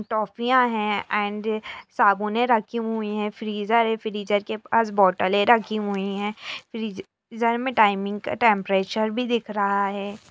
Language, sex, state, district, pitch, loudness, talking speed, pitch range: Hindi, female, Bihar, Saran, 215 Hz, -23 LUFS, 145 wpm, 205-230 Hz